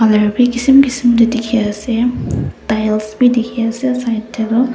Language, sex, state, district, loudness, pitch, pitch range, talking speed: Nagamese, female, Nagaland, Dimapur, -14 LUFS, 235 Hz, 220-245 Hz, 175 wpm